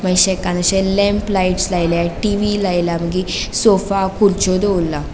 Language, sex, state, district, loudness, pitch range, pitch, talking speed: Konkani, female, Goa, North and South Goa, -16 LUFS, 180-200 Hz, 190 Hz, 105 wpm